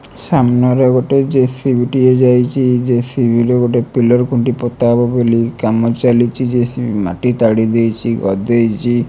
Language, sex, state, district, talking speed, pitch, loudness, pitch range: Odia, male, Odisha, Malkangiri, 125 wpm, 120 Hz, -13 LUFS, 115-125 Hz